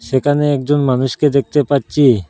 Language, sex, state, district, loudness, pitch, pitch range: Bengali, male, Assam, Hailakandi, -15 LUFS, 140 Hz, 130-145 Hz